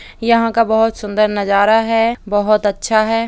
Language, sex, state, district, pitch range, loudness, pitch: Hindi, female, Uttar Pradesh, Jalaun, 205-225 Hz, -15 LUFS, 220 Hz